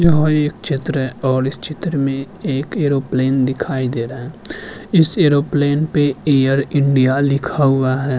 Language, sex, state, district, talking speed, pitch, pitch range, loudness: Hindi, male, Uttarakhand, Tehri Garhwal, 160 wpm, 140 Hz, 130-150 Hz, -17 LUFS